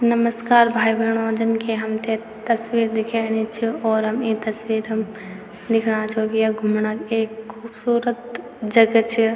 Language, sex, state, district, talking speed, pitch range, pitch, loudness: Garhwali, female, Uttarakhand, Tehri Garhwal, 140 wpm, 220-230 Hz, 225 Hz, -21 LUFS